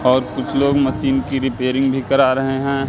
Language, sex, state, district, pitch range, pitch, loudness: Hindi, male, Madhya Pradesh, Katni, 130-135 Hz, 135 Hz, -18 LUFS